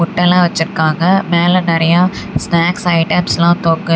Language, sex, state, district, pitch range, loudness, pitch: Tamil, female, Tamil Nadu, Namakkal, 165-180 Hz, -13 LUFS, 170 Hz